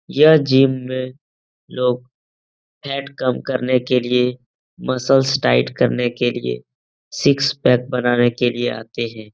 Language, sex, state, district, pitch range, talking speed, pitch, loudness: Hindi, male, Uttar Pradesh, Etah, 115-130 Hz, 120 wpm, 125 Hz, -18 LUFS